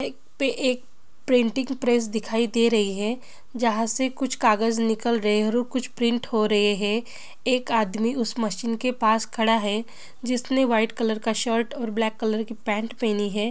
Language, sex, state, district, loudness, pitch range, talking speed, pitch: Hindi, female, Chhattisgarh, Bilaspur, -24 LUFS, 220-245 Hz, 185 wpm, 230 Hz